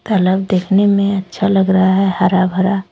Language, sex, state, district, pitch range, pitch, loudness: Hindi, female, Jharkhand, Deoghar, 185-200 Hz, 190 Hz, -14 LUFS